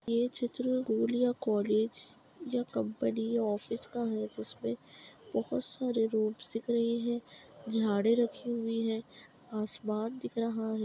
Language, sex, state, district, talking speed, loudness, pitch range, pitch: Hindi, female, Uttar Pradesh, Budaun, 140 wpm, -33 LUFS, 215-235 Hz, 225 Hz